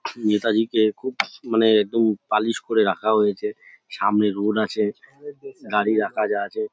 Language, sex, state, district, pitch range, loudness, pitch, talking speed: Bengali, male, West Bengal, North 24 Parganas, 105-115 Hz, -22 LUFS, 110 Hz, 150 wpm